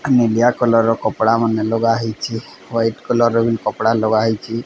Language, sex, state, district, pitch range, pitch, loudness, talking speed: Odia, male, Odisha, Sambalpur, 110-115 Hz, 115 Hz, -17 LUFS, 195 wpm